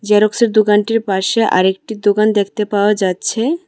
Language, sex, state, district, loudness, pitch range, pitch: Bengali, female, Tripura, West Tripura, -15 LUFS, 200-220 Hz, 210 Hz